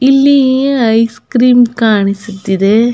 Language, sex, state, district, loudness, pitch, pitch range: Kannada, female, Karnataka, Belgaum, -10 LUFS, 235 Hz, 210-260 Hz